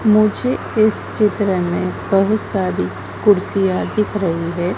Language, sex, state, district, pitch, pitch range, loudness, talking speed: Hindi, female, Madhya Pradesh, Dhar, 200 Hz, 175-215 Hz, -18 LUFS, 125 wpm